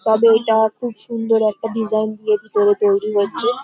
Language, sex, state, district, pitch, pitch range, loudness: Bengali, female, West Bengal, North 24 Parganas, 220 Hz, 210-225 Hz, -18 LUFS